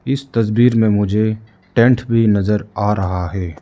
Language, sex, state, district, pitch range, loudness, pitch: Hindi, male, Arunachal Pradesh, Lower Dibang Valley, 100-115 Hz, -16 LUFS, 110 Hz